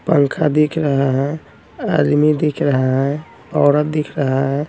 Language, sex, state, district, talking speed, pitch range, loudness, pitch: Hindi, male, Bihar, Patna, 155 wpm, 140-150 Hz, -17 LUFS, 145 Hz